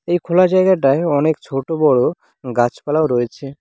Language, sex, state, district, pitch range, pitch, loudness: Bengali, male, West Bengal, Cooch Behar, 135-175 Hz, 150 Hz, -16 LUFS